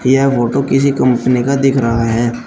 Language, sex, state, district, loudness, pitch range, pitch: Hindi, male, Uttar Pradesh, Shamli, -13 LUFS, 120-135 Hz, 125 Hz